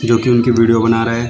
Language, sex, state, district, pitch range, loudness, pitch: Hindi, male, Uttar Pradesh, Shamli, 115-120 Hz, -13 LUFS, 115 Hz